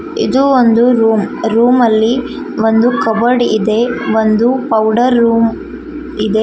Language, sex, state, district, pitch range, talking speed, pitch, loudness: Kannada, female, Karnataka, Koppal, 220-250 Hz, 105 wpm, 230 Hz, -12 LUFS